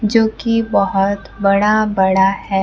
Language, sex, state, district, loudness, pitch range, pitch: Hindi, female, Bihar, Kaimur, -15 LUFS, 195-220 Hz, 200 Hz